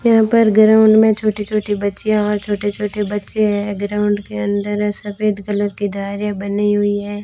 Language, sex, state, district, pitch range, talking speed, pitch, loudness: Hindi, female, Rajasthan, Bikaner, 205-215 Hz, 180 wpm, 205 Hz, -17 LUFS